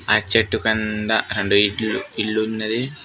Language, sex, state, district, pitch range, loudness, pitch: Telugu, male, Telangana, Mahabubabad, 105-110 Hz, -20 LUFS, 110 Hz